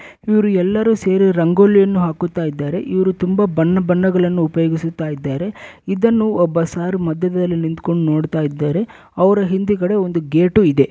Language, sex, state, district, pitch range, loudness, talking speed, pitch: Kannada, male, Karnataka, Bellary, 165-195 Hz, -16 LUFS, 130 wpm, 180 Hz